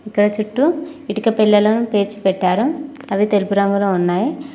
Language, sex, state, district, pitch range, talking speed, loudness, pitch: Telugu, female, Telangana, Mahabubabad, 200-280 Hz, 120 wpm, -17 LUFS, 210 Hz